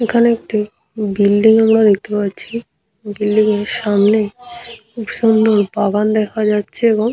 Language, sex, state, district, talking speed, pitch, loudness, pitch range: Bengali, female, West Bengal, Malda, 145 wpm, 215 Hz, -15 LUFS, 210-230 Hz